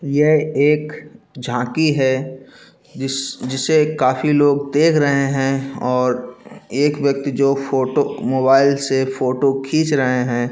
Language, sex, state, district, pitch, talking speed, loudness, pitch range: Hindi, male, Chhattisgarh, Bilaspur, 135 Hz, 120 wpm, -17 LUFS, 130-145 Hz